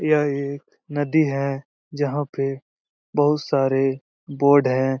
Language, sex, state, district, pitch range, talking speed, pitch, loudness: Hindi, male, Bihar, Lakhisarai, 135-145 Hz, 120 wpm, 140 Hz, -22 LUFS